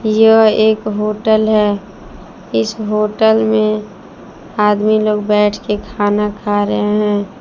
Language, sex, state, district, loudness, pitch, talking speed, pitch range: Hindi, female, Jharkhand, Palamu, -14 LUFS, 210 Hz, 120 wpm, 210-215 Hz